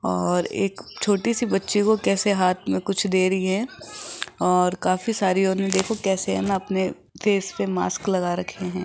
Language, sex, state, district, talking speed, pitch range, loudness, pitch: Hindi, female, Rajasthan, Jaipur, 190 wpm, 185-205 Hz, -23 LUFS, 190 Hz